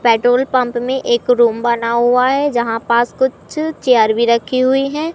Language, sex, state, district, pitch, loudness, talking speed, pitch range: Hindi, male, Madhya Pradesh, Katni, 245 Hz, -15 LUFS, 185 wpm, 235-260 Hz